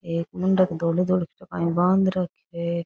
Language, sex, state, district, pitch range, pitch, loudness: Rajasthani, female, Rajasthan, Churu, 170-185 Hz, 175 Hz, -24 LUFS